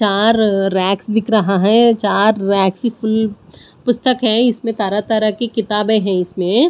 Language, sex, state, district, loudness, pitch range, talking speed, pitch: Hindi, female, Punjab, Pathankot, -15 LUFS, 200-225 Hz, 145 wpm, 215 Hz